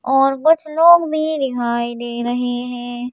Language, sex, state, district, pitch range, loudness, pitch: Hindi, female, Madhya Pradesh, Bhopal, 245-310 Hz, -17 LUFS, 250 Hz